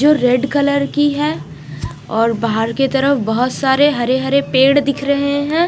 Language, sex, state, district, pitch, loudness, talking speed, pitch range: Hindi, female, Punjab, Fazilka, 270 Hz, -15 LUFS, 180 wpm, 230-285 Hz